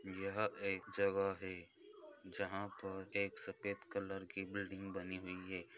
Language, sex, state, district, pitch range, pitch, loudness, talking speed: Hindi, male, Bihar, Jamui, 95-100 Hz, 95 Hz, -43 LUFS, 145 wpm